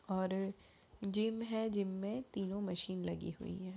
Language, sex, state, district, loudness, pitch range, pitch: Hindi, female, Bihar, Gaya, -40 LUFS, 185-215 Hz, 195 Hz